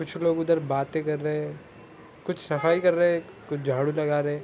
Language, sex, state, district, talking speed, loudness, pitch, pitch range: Hindi, male, Jharkhand, Sahebganj, 245 wpm, -26 LUFS, 155 Hz, 145-170 Hz